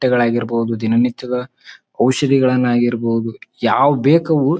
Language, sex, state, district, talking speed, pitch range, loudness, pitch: Kannada, male, Karnataka, Bijapur, 65 wpm, 115-135 Hz, -16 LUFS, 125 Hz